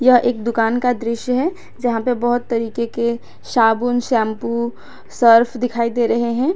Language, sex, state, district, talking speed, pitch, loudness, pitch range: Hindi, female, Jharkhand, Garhwa, 165 wpm, 235 Hz, -18 LUFS, 230-245 Hz